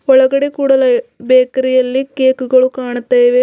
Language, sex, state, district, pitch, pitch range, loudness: Kannada, female, Karnataka, Bidar, 265 Hz, 255-280 Hz, -13 LUFS